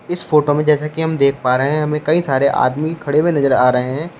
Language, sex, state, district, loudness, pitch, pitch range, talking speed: Hindi, male, Uttar Pradesh, Shamli, -16 LUFS, 150 Hz, 135-155 Hz, 285 wpm